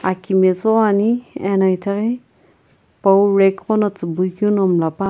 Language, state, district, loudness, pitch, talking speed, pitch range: Sumi, Nagaland, Kohima, -17 LUFS, 195 Hz, 165 wpm, 185-210 Hz